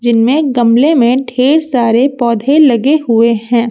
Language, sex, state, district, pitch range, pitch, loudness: Hindi, female, Uttar Pradesh, Lucknow, 235-275 Hz, 245 Hz, -10 LUFS